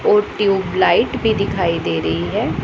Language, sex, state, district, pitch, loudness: Hindi, female, Punjab, Pathankot, 190 Hz, -17 LUFS